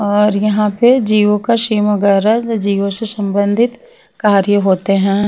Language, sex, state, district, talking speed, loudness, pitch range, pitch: Hindi, female, Bihar, West Champaran, 150 wpm, -13 LUFS, 200-225 Hz, 210 Hz